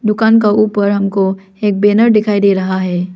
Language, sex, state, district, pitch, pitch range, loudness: Hindi, female, Arunachal Pradesh, Lower Dibang Valley, 205 Hz, 190-215 Hz, -12 LUFS